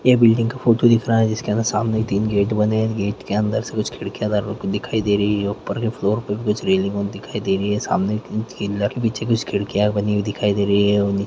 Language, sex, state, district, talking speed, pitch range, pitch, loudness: Hindi, male, Bihar, Muzaffarpur, 235 wpm, 100-110 Hz, 105 Hz, -20 LUFS